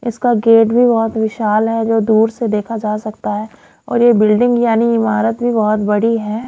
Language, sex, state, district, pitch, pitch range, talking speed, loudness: Hindi, female, Haryana, Jhajjar, 225 Hz, 215-235 Hz, 205 wpm, -14 LUFS